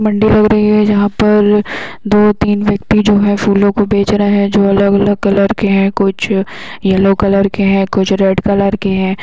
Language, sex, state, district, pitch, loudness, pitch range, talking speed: Hindi, female, Uttar Pradesh, Hamirpur, 200 Hz, -12 LUFS, 195-210 Hz, 210 wpm